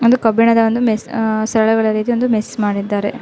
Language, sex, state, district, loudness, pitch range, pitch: Kannada, female, Karnataka, Belgaum, -15 LUFS, 215-235 Hz, 225 Hz